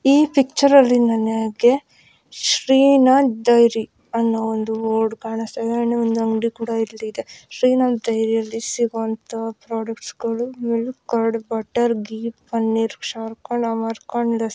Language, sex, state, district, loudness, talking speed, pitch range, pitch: Kannada, female, Karnataka, Belgaum, -19 LUFS, 105 wpm, 225-240 Hz, 230 Hz